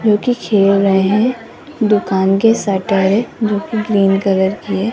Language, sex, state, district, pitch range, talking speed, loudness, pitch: Hindi, female, Rajasthan, Jaipur, 195-220 Hz, 185 wpm, -14 LUFS, 205 Hz